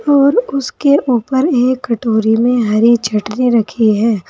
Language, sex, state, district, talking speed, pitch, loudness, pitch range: Hindi, female, Uttar Pradesh, Saharanpur, 140 wpm, 240 Hz, -13 LUFS, 220-260 Hz